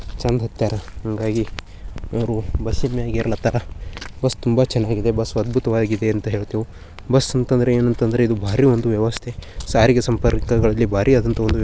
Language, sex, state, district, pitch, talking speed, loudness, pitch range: Kannada, male, Karnataka, Bijapur, 115 Hz, 105 wpm, -20 LUFS, 105-120 Hz